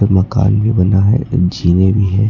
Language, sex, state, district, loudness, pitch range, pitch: Hindi, male, Uttar Pradesh, Lucknow, -13 LUFS, 95-105 Hz, 100 Hz